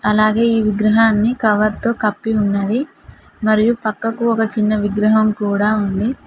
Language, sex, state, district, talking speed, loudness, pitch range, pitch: Telugu, female, Telangana, Mahabubabad, 125 wpm, -16 LUFS, 210-225 Hz, 215 Hz